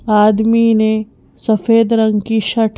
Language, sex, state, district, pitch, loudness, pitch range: Hindi, female, Madhya Pradesh, Bhopal, 220 Hz, -13 LUFS, 215-230 Hz